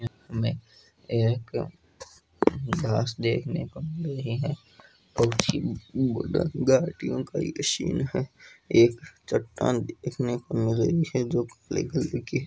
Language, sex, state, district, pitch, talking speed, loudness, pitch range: Hindi, male, Rajasthan, Nagaur, 125 Hz, 120 wpm, -27 LUFS, 115-150 Hz